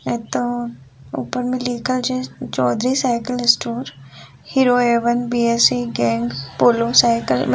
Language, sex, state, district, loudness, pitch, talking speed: Maithili, female, Bihar, Sitamarhi, -18 LUFS, 235 Hz, 125 wpm